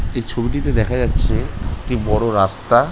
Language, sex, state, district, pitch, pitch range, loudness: Bengali, male, West Bengal, North 24 Parganas, 115 Hz, 100-120 Hz, -19 LUFS